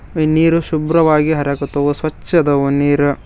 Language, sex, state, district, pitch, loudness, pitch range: Kannada, male, Karnataka, Koppal, 150 Hz, -15 LUFS, 145-160 Hz